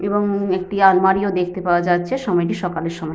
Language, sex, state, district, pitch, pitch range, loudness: Bengali, female, Jharkhand, Sahebganj, 185 Hz, 175-200 Hz, -18 LUFS